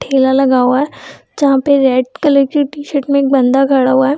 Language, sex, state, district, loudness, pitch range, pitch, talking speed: Hindi, female, Bihar, Gaya, -12 LUFS, 265-280 Hz, 275 Hz, 230 wpm